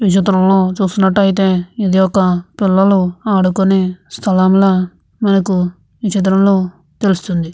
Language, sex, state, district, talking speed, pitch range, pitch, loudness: Telugu, female, Andhra Pradesh, Visakhapatnam, 80 wpm, 185-195 Hz, 190 Hz, -14 LUFS